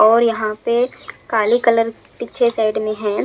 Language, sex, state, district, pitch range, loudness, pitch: Hindi, male, Punjab, Fazilka, 215-235 Hz, -18 LUFS, 225 Hz